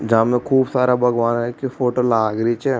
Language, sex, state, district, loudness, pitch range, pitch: Rajasthani, male, Rajasthan, Churu, -18 LUFS, 115-125 Hz, 120 Hz